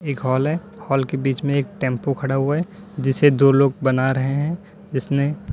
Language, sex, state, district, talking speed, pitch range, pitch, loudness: Hindi, male, Uttar Pradesh, Lalitpur, 205 wpm, 135-150 Hz, 140 Hz, -20 LUFS